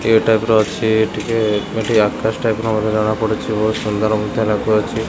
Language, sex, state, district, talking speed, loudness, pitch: Odia, male, Odisha, Khordha, 200 wpm, -17 LUFS, 110 Hz